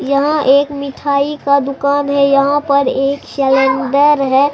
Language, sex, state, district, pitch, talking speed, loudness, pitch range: Hindi, male, Bihar, Katihar, 280 Hz, 145 wpm, -13 LUFS, 275-285 Hz